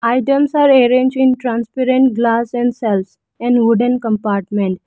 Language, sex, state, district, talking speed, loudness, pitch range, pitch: English, female, Arunachal Pradesh, Lower Dibang Valley, 135 wpm, -15 LUFS, 225-255 Hz, 240 Hz